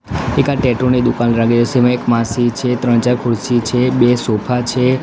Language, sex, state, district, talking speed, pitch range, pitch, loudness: Gujarati, male, Gujarat, Gandhinagar, 205 wpm, 120-125 Hz, 120 Hz, -15 LUFS